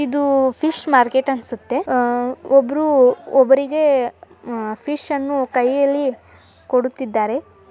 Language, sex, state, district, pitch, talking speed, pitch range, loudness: Kannada, male, Karnataka, Dharwad, 265 Hz, 80 wpm, 250-280 Hz, -18 LUFS